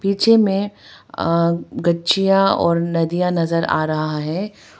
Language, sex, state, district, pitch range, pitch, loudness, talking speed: Hindi, female, Arunachal Pradesh, Papum Pare, 165-195 Hz, 170 Hz, -18 LUFS, 125 wpm